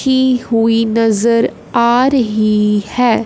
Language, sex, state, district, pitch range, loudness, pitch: Hindi, female, Punjab, Fazilka, 220-245 Hz, -13 LUFS, 230 Hz